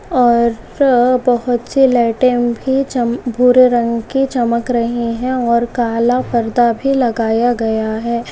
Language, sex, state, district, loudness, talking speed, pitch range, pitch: Hindi, female, Goa, North and South Goa, -14 LUFS, 125 wpm, 235-250 Hz, 240 Hz